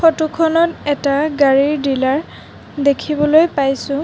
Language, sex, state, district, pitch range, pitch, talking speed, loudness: Assamese, female, Assam, Sonitpur, 280-315 Hz, 290 Hz, 90 wpm, -15 LUFS